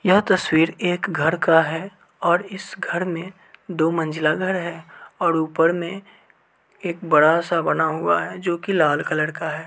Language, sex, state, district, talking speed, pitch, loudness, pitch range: Hindi, male, Uttar Pradesh, Varanasi, 175 wpm, 170 Hz, -21 LUFS, 160-185 Hz